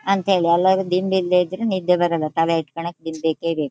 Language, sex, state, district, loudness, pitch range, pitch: Kannada, female, Karnataka, Shimoga, -20 LUFS, 165-190 Hz, 175 Hz